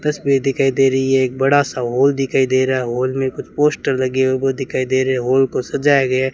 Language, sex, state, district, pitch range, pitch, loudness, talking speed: Hindi, male, Rajasthan, Bikaner, 130-135 Hz, 135 Hz, -17 LUFS, 265 wpm